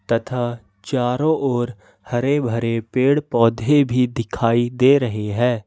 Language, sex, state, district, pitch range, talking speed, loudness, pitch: Hindi, male, Jharkhand, Ranchi, 115-135 Hz, 125 wpm, -19 LUFS, 120 Hz